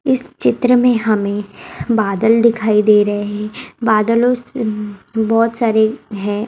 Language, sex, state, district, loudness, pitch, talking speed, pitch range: Hindi, female, Bihar, East Champaran, -15 LUFS, 220 Hz, 130 wpm, 210-235 Hz